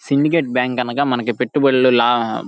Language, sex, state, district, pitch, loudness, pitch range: Telugu, male, Andhra Pradesh, Guntur, 125 Hz, -17 LUFS, 120-140 Hz